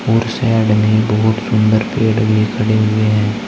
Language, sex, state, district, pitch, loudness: Hindi, male, Uttar Pradesh, Saharanpur, 110 Hz, -14 LUFS